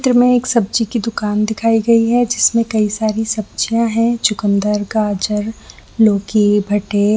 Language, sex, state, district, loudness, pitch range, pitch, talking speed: Hindi, female, Chhattisgarh, Bilaspur, -15 LUFS, 210-230 Hz, 220 Hz, 150 wpm